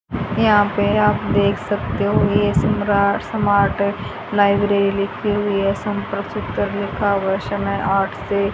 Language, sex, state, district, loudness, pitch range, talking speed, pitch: Hindi, female, Haryana, Charkhi Dadri, -19 LUFS, 200-205 Hz, 140 wpm, 200 Hz